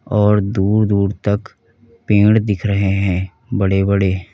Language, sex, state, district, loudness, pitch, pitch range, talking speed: Hindi, male, Uttar Pradesh, Lalitpur, -16 LUFS, 100 Hz, 95-110 Hz, 140 wpm